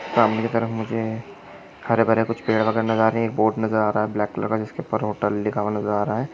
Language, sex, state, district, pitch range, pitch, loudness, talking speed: Hindi, male, Maharashtra, Chandrapur, 105-115 Hz, 110 Hz, -22 LUFS, 310 wpm